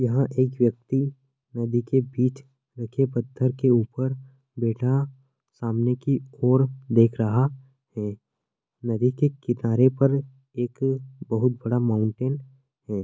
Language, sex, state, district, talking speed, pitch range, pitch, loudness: Hindi, male, Chhattisgarh, Korba, 120 wpm, 120-135 Hz, 130 Hz, -24 LUFS